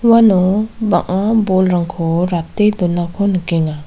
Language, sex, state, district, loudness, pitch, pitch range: Garo, female, Meghalaya, South Garo Hills, -15 LUFS, 185 Hz, 175-210 Hz